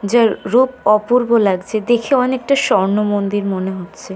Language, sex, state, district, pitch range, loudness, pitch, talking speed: Bengali, female, West Bengal, North 24 Parganas, 195-240 Hz, -16 LUFS, 215 Hz, 130 wpm